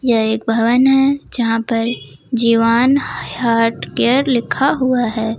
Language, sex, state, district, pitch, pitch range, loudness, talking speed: Hindi, female, Jharkhand, Ranchi, 235 Hz, 230-260 Hz, -15 LUFS, 135 wpm